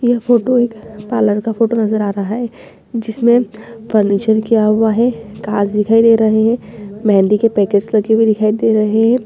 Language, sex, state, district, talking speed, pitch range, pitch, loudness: Hindi, female, Bihar, Purnia, 175 wpm, 210-230 Hz, 220 Hz, -14 LUFS